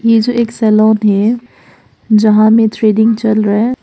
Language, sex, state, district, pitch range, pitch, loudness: Hindi, female, Arunachal Pradesh, Papum Pare, 215-230 Hz, 220 Hz, -11 LUFS